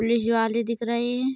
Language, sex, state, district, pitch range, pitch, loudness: Hindi, female, Uttar Pradesh, Ghazipur, 230-235 Hz, 235 Hz, -24 LUFS